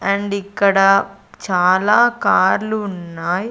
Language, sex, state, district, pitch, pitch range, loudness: Telugu, female, Andhra Pradesh, Sri Satya Sai, 200 Hz, 185-210 Hz, -16 LUFS